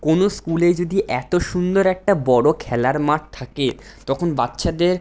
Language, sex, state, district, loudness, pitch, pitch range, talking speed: Bengali, male, West Bengal, Jhargram, -19 LUFS, 160 Hz, 130-180 Hz, 145 wpm